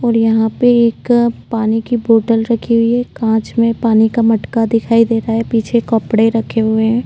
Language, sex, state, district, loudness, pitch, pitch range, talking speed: Hindi, female, Uttar Pradesh, Budaun, -14 LUFS, 230 Hz, 225-235 Hz, 205 wpm